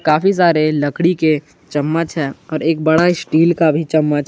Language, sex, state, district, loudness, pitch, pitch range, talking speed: Hindi, male, Jharkhand, Garhwa, -15 LUFS, 155 Hz, 155-165 Hz, 180 wpm